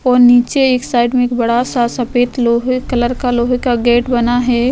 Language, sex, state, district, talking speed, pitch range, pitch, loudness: Hindi, female, Chhattisgarh, Korba, 215 wpm, 240-250 Hz, 245 Hz, -13 LUFS